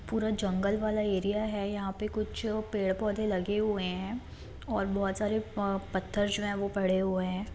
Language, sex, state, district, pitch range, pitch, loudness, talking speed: Hindi, female, Jharkhand, Jamtara, 195-215 Hz, 205 Hz, -31 LUFS, 180 wpm